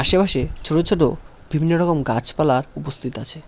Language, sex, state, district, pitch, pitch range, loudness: Bengali, male, West Bengal, Cooch Behar, 150 Hz, 130-165 Hz, -20 LUFS